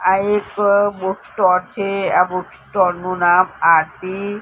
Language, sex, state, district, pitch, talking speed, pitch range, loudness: Gujarati, female, Gujarat, Gandhinagar, 190 Hz, 120 wpm, 180-200 Hz, -17 LUFS